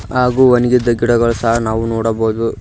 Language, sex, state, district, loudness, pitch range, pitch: Kannada, male, Karnataka, Koppal, -14 LUFS, 115-125 Hz, 115 Hz